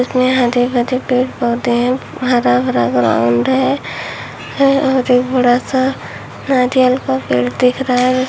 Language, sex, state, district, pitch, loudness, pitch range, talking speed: Hindi, female, Uttar Pradesh, Shamli, 250 Hz, -14 LUFS, 240-260 Hz, 145 wpm